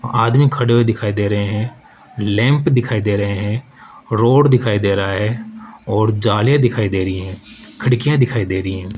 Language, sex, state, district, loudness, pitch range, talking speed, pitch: Hindi, male, Rajasthan, Jaipur, -16 LUFS, 100-125 Hz, 185 wpm, 110 Hz